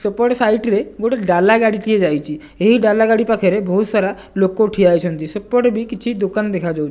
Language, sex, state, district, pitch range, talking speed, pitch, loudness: Odia, male, Odisha, Nuapada, 185-225 Hz, 180 wpm, 210 Hz, -16 LUFS